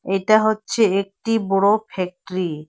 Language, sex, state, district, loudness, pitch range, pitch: Bengali, female, West Bengal, Alipurduar, -20 LUFS, 185-220 Hz, 200 Hz